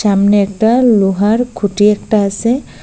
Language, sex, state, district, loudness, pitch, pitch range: Bengali, female, Assam, Hailakandi, -12 LUFS, 210 Hz, 200-230 Hz